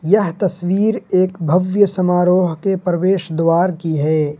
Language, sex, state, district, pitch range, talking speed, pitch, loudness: Hindi, male, Jharkhand, Ranchi, 165-190 Hz, 135 wpm, 180 Hz, -16 LUFS